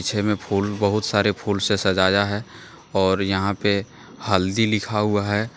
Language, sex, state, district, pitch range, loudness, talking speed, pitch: Hindi, male, Jharkhand, Deoghar, 100-105 Hz, -21 LUFS, 160 wpm, 100 Hz